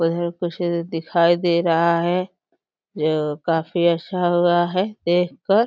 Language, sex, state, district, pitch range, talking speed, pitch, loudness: Hindi, female, Uttar Pradesh, Deoria, 165-175 Hz, 150 wpm, 170 Hz, -20 LUFS